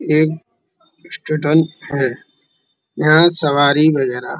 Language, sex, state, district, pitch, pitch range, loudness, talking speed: Hindi, male, Uttar Pradesh, Muzaffarnagar, 155 Hz, 140-155 Hz, -15 LUFS, 80 wpm